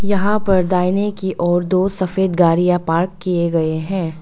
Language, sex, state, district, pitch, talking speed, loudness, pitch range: Hindi, female, Arunachal Pradesh, Longding, 180 Hz, 170 wpm, -17 LUFS, 175-190 Hz